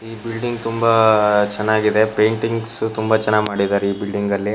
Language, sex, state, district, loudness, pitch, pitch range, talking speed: Kannada, male, Karnataka, Shimoga, -18 LUFS, 110 Hz, 105-115 Hz, 160 wpm